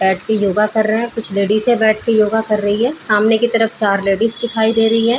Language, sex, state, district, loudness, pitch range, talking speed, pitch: Hindi, female, Bihar, Saran, -14 LUFS, 210-230 Hz, 275 wpm, 220 Hz